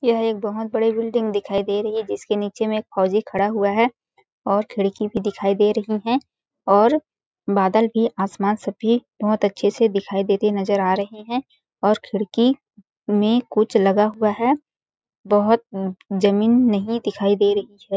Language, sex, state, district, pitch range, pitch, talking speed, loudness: Hindi, female, Chhattisgarh, Balrampur, 200-225 Hz, 210 Hz, 180 wpm, -20 LUFS